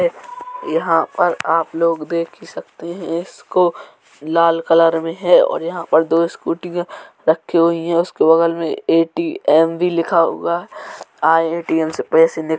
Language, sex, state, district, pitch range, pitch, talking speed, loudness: Hindi, male, Uttar Pradesh, Jalaun, 165-175 Hz, 165 Hz, 165 wpm, -17 LUFS